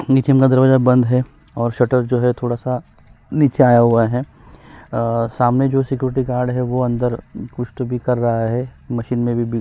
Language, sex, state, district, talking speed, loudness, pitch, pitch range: Hindi, male, Chhattisgarh, Kabirdham, 195 wpm, -17 LUFS, 125 Hz, 120-130 Hz